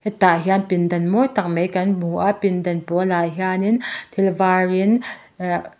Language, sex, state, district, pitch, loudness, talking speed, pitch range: Mizo, male, Mizoram, Aizawl, 185 Hz, -19 LUFS, 185 wpm, 175-200 Hz